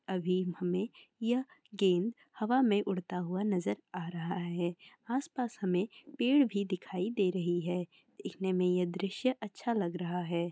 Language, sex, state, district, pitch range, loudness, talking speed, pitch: Hindi, female, Bihar, Bhagalpur, 180-230 Hz, -33 LUFS, 165 wpm, 190 Hz